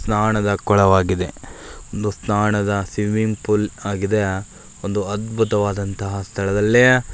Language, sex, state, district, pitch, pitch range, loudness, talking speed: Kannada, male, Karnataka, Belgaum, 105 Hz, 100-105 Hz, -19 LUFS, 90 wpm